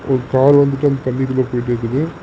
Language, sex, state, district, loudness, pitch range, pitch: Tamil, male, Tamil Nadu, Namakkal, -16 LUFS, 130-140 Hz, 130 Hz